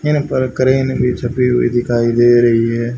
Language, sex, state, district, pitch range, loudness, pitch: Hindi, male, Haryana, Charkhi Dadri, 120-130 Hz, -14 LUFS, 120 Hz